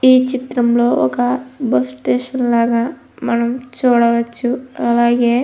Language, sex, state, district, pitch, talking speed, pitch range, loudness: Telugu, female, Andhra Pradesh, Anantapur, 245 Hz, 110 wpm, 235-255 Hz, -16 LUFS